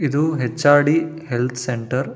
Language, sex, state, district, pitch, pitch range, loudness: Kannada, male, Karnataka, Shimoga, 145 Hz, 125-155 Hz, -19 LUFS